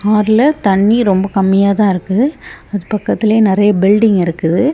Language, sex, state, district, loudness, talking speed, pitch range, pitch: Tamil, female, Tamil Nadu, Kanyakumari, -12 LUFS, 140 wpm, 195-220 Hz, 205 Hz